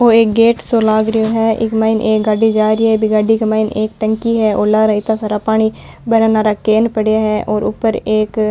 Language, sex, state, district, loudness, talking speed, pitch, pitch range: Marwari, female, Rajasthan, Nagaur, -14 LUFS, 195 wpm, 220 Hz, 215-225 Hz